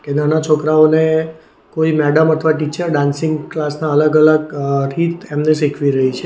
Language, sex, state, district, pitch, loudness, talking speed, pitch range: Gujarati, male, Gujarat, Valsad, 155 Hz, -15 LUFS, 165 wpm, 145-160 Hz